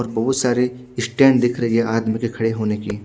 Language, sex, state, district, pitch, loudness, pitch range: Hindi, male, Odisha, Khordha, 115 Hz, -19 LUFS, 115-125 Hz